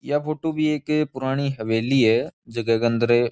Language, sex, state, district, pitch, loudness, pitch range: Rajasthani, male, Rajasthan, Churu, 130 Hz, -22 LUFS, 115-150 Hz